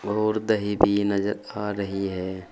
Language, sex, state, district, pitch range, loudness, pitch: Hindi, male, Uttar Pradesh, Saharanpur, 100-105 Hz, -25 LUFS, 100 Hz